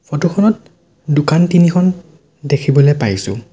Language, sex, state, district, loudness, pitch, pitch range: Assamese, male, Assam, Sonitpur, -14 LUFS, 155 Hz, 140-175 Hz